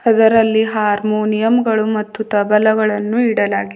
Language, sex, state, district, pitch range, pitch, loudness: Kannada, female, Karnataka, Bidar, 210-225 Hz, 215 Hz, -15 LUFS